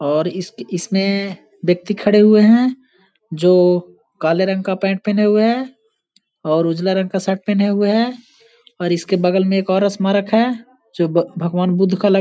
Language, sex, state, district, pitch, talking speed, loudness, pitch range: Hindi, male, Bihar, Gaya, 195 Hz, 190 wpm, -16 LUFS, 180-210 Hz